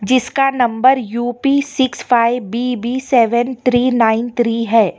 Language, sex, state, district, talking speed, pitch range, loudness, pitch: Hindi, female, Karnataka, Bangalore, 130 wpm, 235-255 Hz, -15 LUFS, 245 Hz